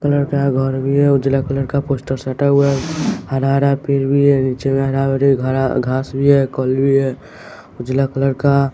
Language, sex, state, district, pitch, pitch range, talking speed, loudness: Hindi, male, Bihar, West Champaran, 135 Hz, 135-140 Hz, 205 wpm, -16 LUFS